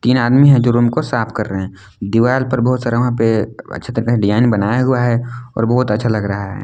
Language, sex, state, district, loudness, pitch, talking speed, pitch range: Hindi, male, Jharkhand, Palamu, -15 LUFS, 120 Hz, 260 wpm, 105-125 Hz